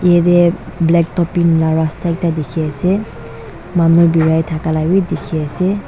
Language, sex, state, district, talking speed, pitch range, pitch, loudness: Nagamese, female, Nagaland, Dimapur, 155 wpm, 160-175 Hz, 165 Hz, -15 LUFS